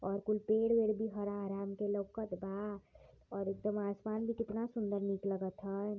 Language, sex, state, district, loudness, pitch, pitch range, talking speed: Hindi, female, Uttar Pradesh, Varanasi, -38 LUFS, 205 Hz, 195-215 Hz, 190 wpm